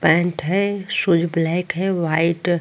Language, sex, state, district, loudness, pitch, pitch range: Hindi, female, Bihar, Vaishali, -20 LUFS, 175 Hz, 170-190 Hz